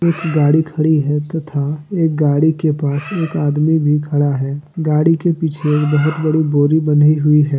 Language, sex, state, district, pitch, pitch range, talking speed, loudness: Hindi, male, Jharkhand, Deoghar, 150 Hz, 145-160 Hz, 180 wpm, -15 LUFS